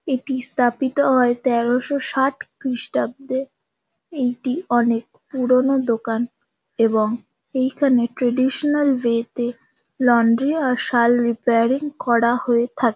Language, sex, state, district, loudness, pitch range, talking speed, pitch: Bengali, female, West Bengal, Kolkata, -20 LUFS, 235-265 Hz, 100 wpm, 250 Hz